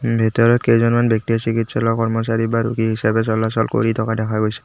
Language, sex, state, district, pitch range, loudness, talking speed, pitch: Assamese, male, Assam, Kamrup Metropolitan, 110-115 Hz, -18 LUFS, 140 wpm, 115 Hz